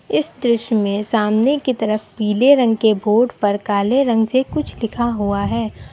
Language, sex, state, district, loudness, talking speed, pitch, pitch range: Hindi, female, Uttar Pradesh, Lucknow, -17 LUFS, 180 wpm, 225 Hz, 210-240 Hz